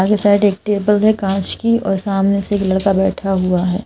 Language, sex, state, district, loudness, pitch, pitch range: Hindi, female, Madhya Pradesh, Bhopal, -15 LUFS, 195 Hz, 190-205 Hz